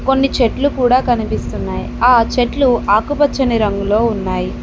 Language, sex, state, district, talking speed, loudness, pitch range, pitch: Telugu, female, Telangana, Mahabubabad, 115 wpm, -15 LUFS, 215-265 Hz, 240 Hz